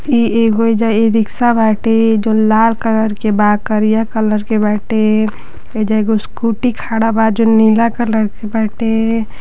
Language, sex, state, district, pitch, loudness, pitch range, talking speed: Bhojpuri, female, Uttar Pradesh, Deoria, 220 Hz, -13 LUFS, 215-225 Hz, 155 wpm